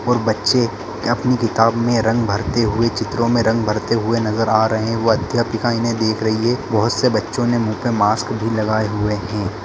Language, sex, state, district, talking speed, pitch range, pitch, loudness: Hindi, male, Bihar, Lakhisarai, 210 wpm, 110-115 Hz, 115 Hz, -18 LUFS